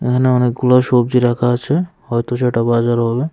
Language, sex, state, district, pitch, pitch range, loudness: Bengali, male, Tripura, West Tripura, 125 Hz, 120-125 Hz, -15 LUFS